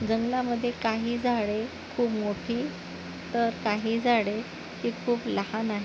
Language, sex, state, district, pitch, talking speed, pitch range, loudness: Marathi, female, Maharashtra, Nagpur, 230 Hz, 125 wpm, 220-240 Hz, -29 LUFS